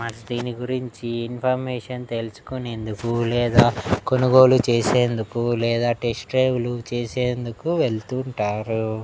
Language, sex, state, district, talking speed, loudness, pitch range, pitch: Telugu, male, Andhra Pradesh, Annamaya, 95 wpm, -22 LUFS, 115-125 Hz, 120 Hz